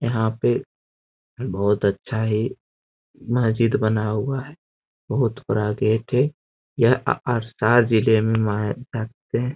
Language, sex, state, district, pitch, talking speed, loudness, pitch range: Hindi, male, Bihar, Jamui, 110 Hz, 125 wpm, -22 LUFS, 105-120 Hz